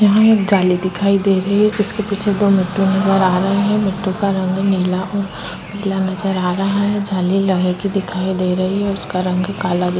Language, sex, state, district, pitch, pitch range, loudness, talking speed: Hindi, female, Chhattisgarh, Kabirdham, 195 Hz, 185-200 Hz, -17 LUFS, 220 wpm